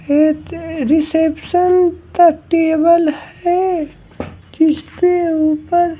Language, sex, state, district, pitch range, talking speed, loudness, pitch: Hindi, male, Bihar, Patna, 310-345 Hz, 70 wpm, -15 LUFS, 325 Hz